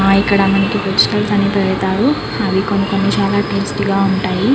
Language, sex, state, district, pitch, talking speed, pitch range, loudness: Telugu, female, Andhra Pradesh, Krishna, 200 Hz, 130 wpm, 195-205 Hz, -15 LUFS